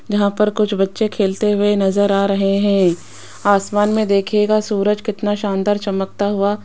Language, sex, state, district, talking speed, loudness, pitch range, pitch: Hindi, female, Rajasthan, Jaipur, 170 wpm, -17 LUFS, 200-210 Hz, 205 Hz